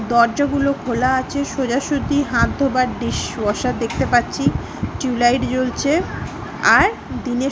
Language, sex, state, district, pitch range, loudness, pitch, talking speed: Bengali, female, West Bengal, Malda, 240-280 Hz, -19 LUFS, 255 Hz, 135 wpm